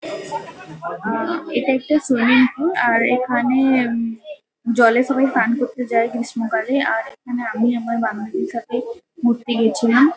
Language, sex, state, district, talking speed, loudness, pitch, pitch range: Bengali, female, West Bengal, Kolkata, 130 wpm, -19 LUFS, 245 Hz, 230-265 Hz